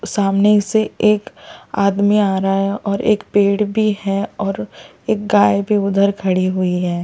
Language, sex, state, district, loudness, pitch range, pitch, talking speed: Hindi, male, Delhi, New Delhi, -17 LUFS, 195-210 Hz, 200 Hz, 185 wpm